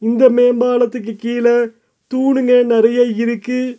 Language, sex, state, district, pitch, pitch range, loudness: Tamil, male, Tamil Nadu, Nilgiris, 245 Hz, 235-250 Hz, -14 LUFS